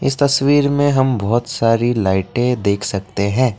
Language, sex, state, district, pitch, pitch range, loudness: Hindi, male, Assam, Kamrup Metropolitan, 120 Hz, 100-135 Hz, -16 LUFS